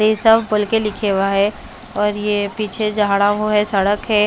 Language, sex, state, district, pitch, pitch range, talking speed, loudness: Hindi, female, Punjab, Pathankot, 210 Hz, 205-215 Hz, 210 wpm, -17 LUFS